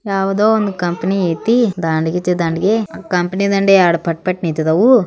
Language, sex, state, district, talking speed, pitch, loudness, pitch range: Kannada, female, Karnataka, Belgaum, 140 wpm, 185 Hz, -15 LUFS, 170-200 Hz